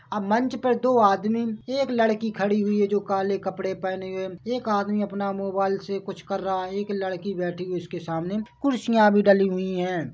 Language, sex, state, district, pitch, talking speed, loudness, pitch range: Hindi, male, Chhattisgarh, Bilaspur, 200 Hz, 215 wpm, -25 LUFS, 190-215 Hz